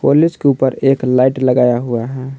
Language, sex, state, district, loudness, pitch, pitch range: Hindi, male, Jharkhand, Palamu, -14 LUFS, 130 Hz, 125-135 Hz